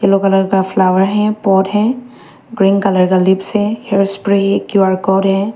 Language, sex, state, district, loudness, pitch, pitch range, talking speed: Hindi, female, Arunachal Pradesh, Papum Pare, -13 LUFS, 195 Hz, 190-205 Hz, 195 wpm